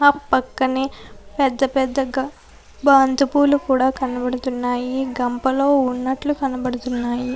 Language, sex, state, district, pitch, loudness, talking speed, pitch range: Telugu, female, Andhra Pradesh, Anantapur, 265 Hz, -20 LUFS, 75 wpm, 255-275 Hz